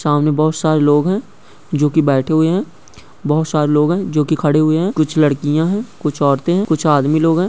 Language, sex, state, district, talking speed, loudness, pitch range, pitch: Hindi, male, Bihar, Araria, 230 wpm, -15 LUFS, 150-165 Hz, 155 Hz